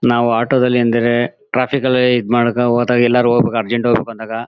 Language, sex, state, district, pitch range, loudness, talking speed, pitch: Kannada, male, Karnataka, Mysore, 120-125 Hz, -15 LUFS, 160 wpm, 120 Hz